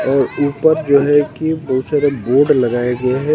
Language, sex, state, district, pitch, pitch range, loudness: Hindi, male, Haryana, Jhajjar, 140 Hz, 130-150 Hz, -15 LUFS